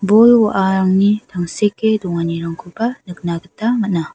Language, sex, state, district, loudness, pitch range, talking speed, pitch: Garo, female, Meghalaya, South Garo Hills, -16 LUFS, 175-220 Hz, 85 wpm, 190 Hz